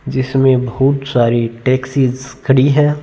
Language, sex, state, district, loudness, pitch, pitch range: Hindi, male, Punjab, Fazilka, -14 LUFS, 130 Hz, 125-135 Hz